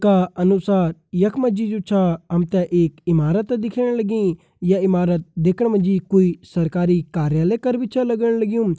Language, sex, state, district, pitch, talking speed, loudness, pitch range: Garhwali, male, Uttarakhand, Uttarkashi, 190 Hz, 155 wpm, -19 LUFS, 175-220 Hz